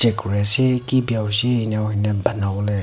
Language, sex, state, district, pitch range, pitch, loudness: Nagamese, female, Nagaland, Kohima, 105-120 Hz, 110 Hz, -20 LUFS